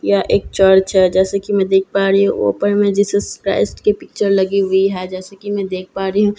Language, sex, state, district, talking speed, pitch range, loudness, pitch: Hindi, female, Bihar, Katihar, 265 wpm, 190-200 Hz, -15 LUFS, 195 Hz